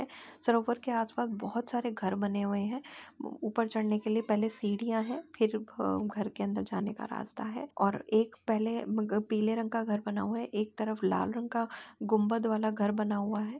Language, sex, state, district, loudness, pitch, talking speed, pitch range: Hindi, female, Uttar Pradesh, Etah, -33 LUFS, 220 Hz, 200 wpm, 210-230 Hz